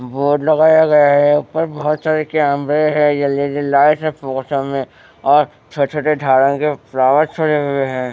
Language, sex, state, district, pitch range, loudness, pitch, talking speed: Hindi, male, Bihar, West Champaran, 140-150 Hz, -15 LUFS, 145 Hz, 160 wpm